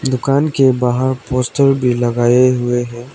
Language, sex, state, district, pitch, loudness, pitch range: Hindi, male, Arunachal Pradesh, Lower Dibang Valley, 125 Hz, -14 LUFS, 120-135 Hz